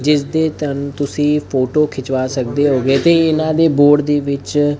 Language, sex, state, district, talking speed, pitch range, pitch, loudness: Punjabi, male, Punjab, Fazilka, 175 wpm, 135-150 Hz, 145 Hz, -15 LUFS